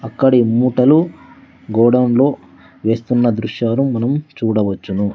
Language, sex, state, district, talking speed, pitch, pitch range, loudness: Telugu, male, Andhra Pradesh, Sri Satya Sai, 95 wpm, 120 Hz, 110-130 Hz, -16 LUFS